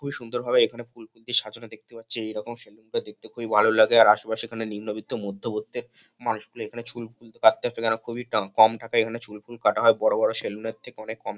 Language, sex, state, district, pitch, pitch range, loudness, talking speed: Bengali, male, West Bengal, Kolkata, 115 Hz, 110-120 Hz, -21 LUFS, 200 wpm